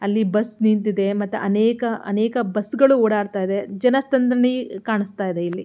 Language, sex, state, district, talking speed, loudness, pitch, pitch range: Kannada, female, Karnataka, Mysore, 140 wpm, -20 LUFS, 215 Hz, 200-240 Hz